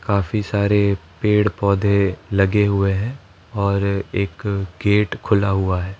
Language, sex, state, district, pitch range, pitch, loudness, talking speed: Hindi, male, Rajasthan, Jaipur, 95-105 Hz, 100 Hz, -19 LUFS, 130 wpm